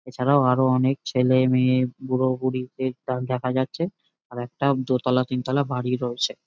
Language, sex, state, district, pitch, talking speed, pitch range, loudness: Bengali, male, West Bengal, Jhargram, 130 Hz, 150 wpm, 125-130 Hz, -23 LUFS